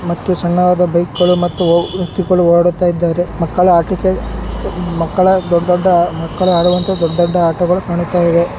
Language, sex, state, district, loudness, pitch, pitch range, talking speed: Kannada, male, Karnataka, Shimoga, -14 LUFS, 175 Hz, 170-180 Hz, 135 wpm